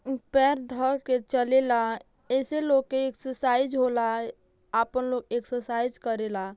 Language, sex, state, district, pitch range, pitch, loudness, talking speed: Bhojpuri, female, Uttar Pradesh, Gorakhpur, 235-265 Hz, 255 Hz, -27 LUFS, 130 wpm